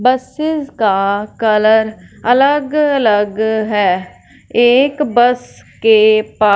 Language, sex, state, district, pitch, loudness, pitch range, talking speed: Hindi, female, Punjab, Fazilka, 220 Hz, -13 LUFS, 210-260 Hz, 90 wpm